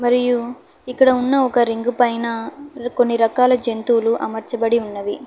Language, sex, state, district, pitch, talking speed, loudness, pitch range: Telugu, female, Telangana, Hyderabad, 245 Hz, 125 wpm, -18 LUFS, 230-250 Hz